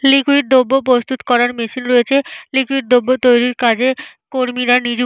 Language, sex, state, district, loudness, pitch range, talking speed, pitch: Bengali, female, Jharkhand, Jamtara, -14 LUFS, 245-270 Hz, 155 wpm, 255 Hz